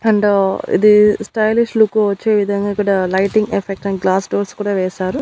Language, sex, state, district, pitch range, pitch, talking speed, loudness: Telugu, female, Andhra Pradesh, Annamaya, 195-215 Hz, 205 Hz, 160 wpm, -15 LUFS